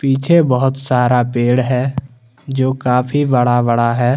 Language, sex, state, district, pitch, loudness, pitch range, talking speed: Hindi, male, Jharkhand, Deoghar, 125 Hz, -15 LUFS, 120-135 Hz, 145 wpm